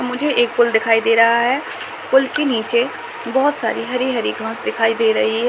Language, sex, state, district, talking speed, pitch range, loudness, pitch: Hindi, female, Uttar Pradesh, Jyotiba Phule Nagar, 195 wpm, 225-260 Hz, -17 LUFS, 240 Hz